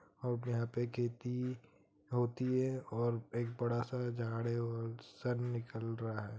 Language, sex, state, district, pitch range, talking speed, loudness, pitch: Hindi, male, Bihar, Gopalganj, 115-125 Hz, 160 wpm, -39 LUFS, 120 Hz